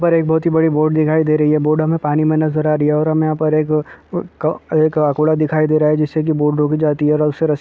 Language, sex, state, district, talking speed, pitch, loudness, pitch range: Hindi, male, Chhattisgarh, Kabirdham, 310 wpm, 155 Hz, -16 LUFS, 150-155 Hz